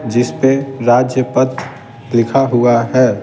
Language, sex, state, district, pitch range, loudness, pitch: Hindi, male, Bihar, Patna, 120-135 Hz, -14 LUFS, 125 Hz